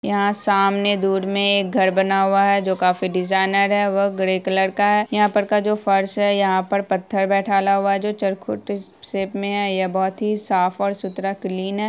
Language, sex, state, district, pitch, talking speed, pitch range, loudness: Hindi, female, Bihar, Saharsa, 195 Hz, 190 wpm, 190-205 Hz, -19 LUFS